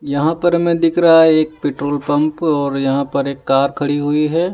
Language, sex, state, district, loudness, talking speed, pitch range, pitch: Hindi, male, Delhi, New Delhi, -15 LUFS, 225 wpm, 140-165 Hz, 150 Hz